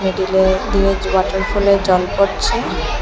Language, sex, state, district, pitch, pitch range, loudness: Bengali, female, Assam, Hailakandi, 195 Hz, 190-200 Hz, -16 LUFS